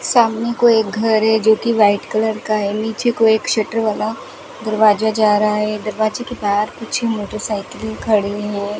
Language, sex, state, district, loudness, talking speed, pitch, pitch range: Hindi, female, Rajasthan, Bikaner, -17 LUFS, 185 wpm, 220 Hz, 210-225 Hz